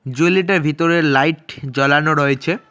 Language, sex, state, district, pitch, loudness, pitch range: Bengali, male, West Bengal, Cooch Behar, 155 Hz, -16 LUFS, 140-170 Hz